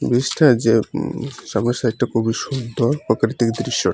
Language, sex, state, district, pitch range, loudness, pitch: Bengali, male, Tripura, Unakoti, 115-130 Hz, -19 LUFS, 120 Hz